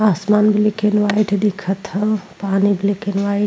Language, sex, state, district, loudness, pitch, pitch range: Bhojpuri, female, Uttar Pradesh, Ghazipur, -17 LUFS, 205 Hz, 200-210 Hz